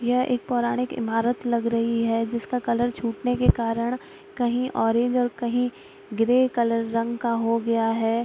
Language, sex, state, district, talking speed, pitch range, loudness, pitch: Hindi, female, Bihar, Araria, 165 wpm, 230-245 Hz, -24 LUFS, 235 Hz